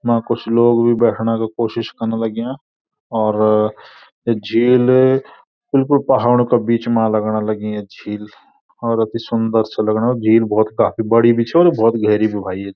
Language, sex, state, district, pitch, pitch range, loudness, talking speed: Garhwali, male, Uttarakhand, Uttarkashi, 115 Hz, 110-120 Hz, -16 LUFS, 170 wpm